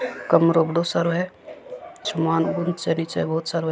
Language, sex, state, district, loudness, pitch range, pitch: Rajasthani, female, Rajasthan, Churu, -22 LUFS, 165-175 Hz, 165 Hz